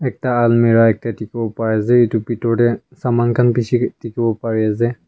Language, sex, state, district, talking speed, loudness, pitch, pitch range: Nagamese, male, Nagaland, Kohima, 200 wpm, -17 LUFS, 115 Hz, 115-120 Hz